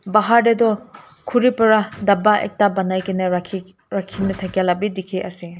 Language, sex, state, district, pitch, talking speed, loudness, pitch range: Nagamese, female, Nagaland, Kohima, 195 Hz, 170 wpm, -19 LUFS, 185-215 Hz